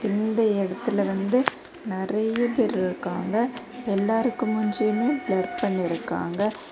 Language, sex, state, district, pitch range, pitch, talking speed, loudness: Tamil, female, Tamil Nadu, Kanyakumari, 195-230 Hz, 215 Hz, 100 wpm, -25 LUFS